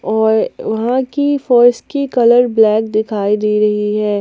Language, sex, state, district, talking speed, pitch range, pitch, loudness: Hindi, female, Jharkhand, Palamu, 155 wpm, 215-250 Hz, 225 Hz, -14 LUFS